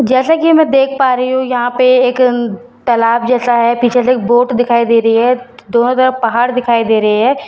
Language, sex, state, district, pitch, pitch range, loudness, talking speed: Hindi, female, Bihar, Katihar, 245 Hz, 235-255 Hz, -12 LUFS, 240 wpm